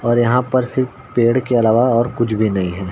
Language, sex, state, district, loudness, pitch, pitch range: Hindi, male, Uttar Pradesh, Ghazipur, -16 LUFS, 120 Hz, 115-125 Hz